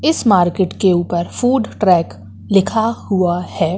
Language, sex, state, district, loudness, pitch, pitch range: Hindi, female, Madhya Pradesh, Umaria, -16 LUFS, 185 Hz, 175-215 Hz